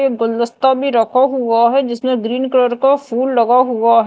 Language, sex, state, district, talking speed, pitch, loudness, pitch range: Hindi, female, Madhya Pradesh, Dhar, 205 wpm, 250 Hz, -14 LUFS, 235-265 Hz